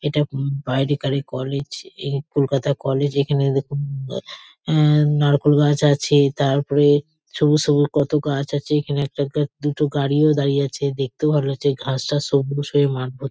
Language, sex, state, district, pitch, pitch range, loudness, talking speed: Bengali, female, West Bengal, Kolkata, 145 Hz, 140-145 Hz, -20 LUFS, 155 wpm